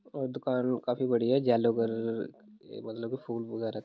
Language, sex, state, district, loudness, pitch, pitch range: Hindi, male, Bihar, Muzaffarpur, -31 LUFS, 120 Hz, 115-130 Hz